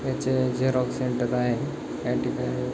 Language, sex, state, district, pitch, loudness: Marathi, male, Maharashtra, Chandrapur, 125 Hz, -26 LUFS